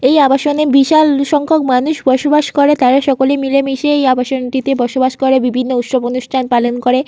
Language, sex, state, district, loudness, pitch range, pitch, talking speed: Bengali, female, West Bengal, Jhargram, -13 LUFS, 255-285 Hz, 270 Hz, 160 wpm